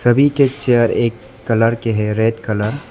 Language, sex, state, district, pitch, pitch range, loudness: Hindi, male, Arunachal Pradesh, Lower Dibang Valley, 115 Hz, 115-130 Hz, -16 LUFS